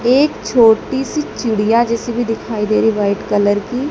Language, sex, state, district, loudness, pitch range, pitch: Hindi, male, Madhya Pradesh, Dhar, -15 LUFS, 215-245 Hz, 230 Hz